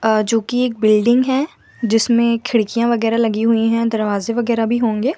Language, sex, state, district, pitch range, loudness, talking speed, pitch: Hindi, female, Madhya Pradesh, Bhopal, 225-235 Hz, -17 LUFS, 175 wpm, 230 Hz